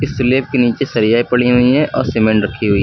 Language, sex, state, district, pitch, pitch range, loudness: Hindi, male, Uttar Pradesh, Lucknow, 125 Hz, 110-130 Hz, -14 LUFS